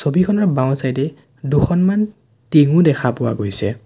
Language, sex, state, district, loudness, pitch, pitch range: Assamese, male, Assam, Sonitpur, -17 LUFS, 145 Hz, 130-170 Hz